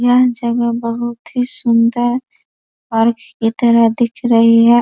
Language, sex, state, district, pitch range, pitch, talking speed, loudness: Hindi, female, Bihar, East Champaran, 230-240 Hz, 235 Hz, 135 wpm, -14 LUFS